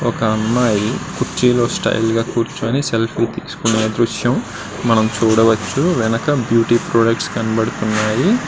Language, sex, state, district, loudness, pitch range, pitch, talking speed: Telugu, male, Andhra Pradesh, Srikakulam, -17 LUFS, 110-120 Hz, 115 Hz, 105 wpm